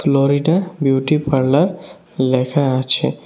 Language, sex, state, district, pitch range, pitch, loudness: Bengali, male, Tripura, West Tripura, 130-155 Hz, 140 Hz, -16 LUFS